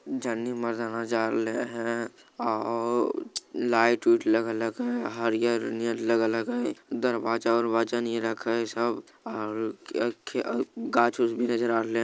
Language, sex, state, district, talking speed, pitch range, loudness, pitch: Magahi, male, Bihar, Jamui, 130 wpm, 115-120 Hz, -28 LUFS, 115 Hz